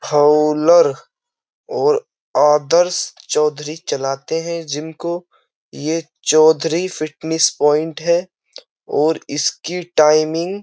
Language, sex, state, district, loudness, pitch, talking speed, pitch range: Hindi, male, Uttar Pradesh, Jyotiba Phule Nagar, -17 LUFS, 160 Hz, 95 wpm, 150-175 Hz